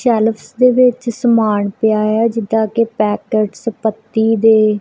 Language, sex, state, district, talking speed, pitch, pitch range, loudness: Punjabi, female, Punjab, Kapurthala, 150 wpm, 220 Hz, 215-230 Hz, -14 LUFS